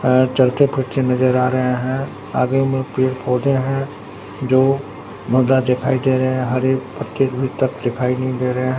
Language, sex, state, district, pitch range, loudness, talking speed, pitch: Hindi, male, Bihar, Katihar, 125-130 Hz, -18 LUFS, 175 wpm, 130 Hz